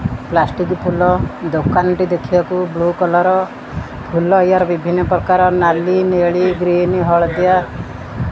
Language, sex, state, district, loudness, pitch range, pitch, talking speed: Odia, female, Odisha, Khordha, -15 LUFS, 170-180 Hz, 180 Hz, 115 wpm